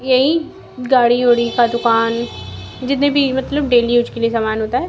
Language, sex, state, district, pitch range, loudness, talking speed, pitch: Hindi, female, Bihar, Kaimur, 230-265 Hz, -16 LUFS, 185 wpm, 240 Hz